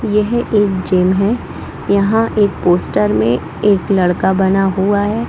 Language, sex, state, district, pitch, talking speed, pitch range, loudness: Hindi, female, Chhattisgarh, Bilaspur, 195 Hz, 160 wpm, 185-210 Hz, -14 LUFS